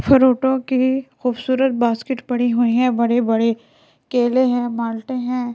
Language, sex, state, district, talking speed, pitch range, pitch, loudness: Hindi, female, Delhi, New Delhi, 130 wpm, 235-260 Hz, 250 Hz, -18 LUFS